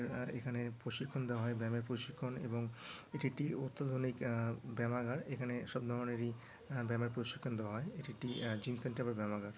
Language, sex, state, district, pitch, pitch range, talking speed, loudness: Bengali, male, West Bengal, Malda, 120 Hz, 115-130 Hz, 165 wpm, -41 LUFS